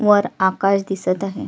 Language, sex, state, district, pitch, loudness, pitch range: Marathi, female, Maharashtra, Solapur, 195 Hz, -19 LUFS, 190-205 Hz